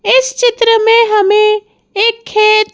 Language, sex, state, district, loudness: Hindi, female, Madhya Pradesh, Bhopal, -10 LUFS